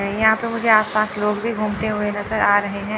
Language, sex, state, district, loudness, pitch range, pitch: Hindi, female, Chandigarh, Chandigarh, -19 LUFS, 205-220 Hz, 215 Hz